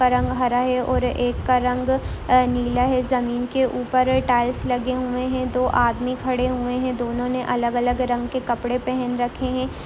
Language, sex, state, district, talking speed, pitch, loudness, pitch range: Hindi, female, Bihar, Muzaffarpur, 200 wpm, 250 Hz, -22 LUFS, 245-255 Hz